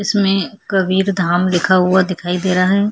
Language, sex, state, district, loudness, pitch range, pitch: Hindi, female, Chhattisgarh, Kabirdham, -15 LUFS, 180-195 Hz, 185 Hz